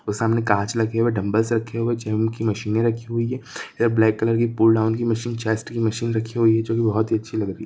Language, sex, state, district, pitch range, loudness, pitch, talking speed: Hindi, male, Chhattisgarh, Bilaspur, 110-115 Hz, -21 LUFS, 115 Hz, 275 wpm